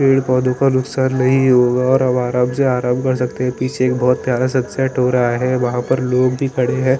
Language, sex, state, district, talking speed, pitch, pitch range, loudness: Hindi, male, Chandigarh, Chandigarh, 250 wpm, 130 Hz, 125-130 Hz, -16 LUFS